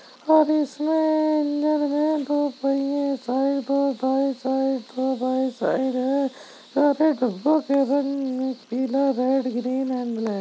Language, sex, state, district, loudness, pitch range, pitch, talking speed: Hindi, male, Uttar Pradesh, Jyotiba Phule Nagar, -23 LUFS, 260-290 Hz, 275 Hz, 110 wpm